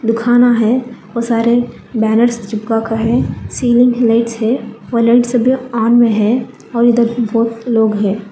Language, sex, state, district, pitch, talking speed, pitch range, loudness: Hindi, female, Telangana, Hyderabad, 235 Hz, 165 wpm, 225-240 Hz, -14 LUFS